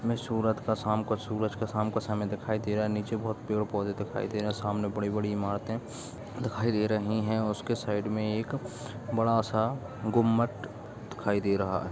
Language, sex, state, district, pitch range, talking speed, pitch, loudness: Hindi, male, Bihar, Jahanabad, 105-115 Hz, 195 wpm, 110 Hz, -30 LUFS